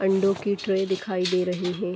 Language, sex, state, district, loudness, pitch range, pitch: Hindi, female, Uttar Pradesh, Etah, -25 LUFS, 180-195 Hz, 190 Hz